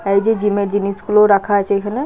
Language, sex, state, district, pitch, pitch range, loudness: Bengali, female, West Bengal, Paschim Medinipur, 205 Hz, 200-210 Hz, -15 LUFS